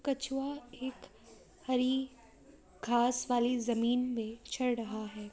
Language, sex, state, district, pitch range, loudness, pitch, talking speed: Hindi, female, Uttar Pradesh, Jalaun, 235-260 Hz, -34 LUFS, 245 Hz, 125 wpm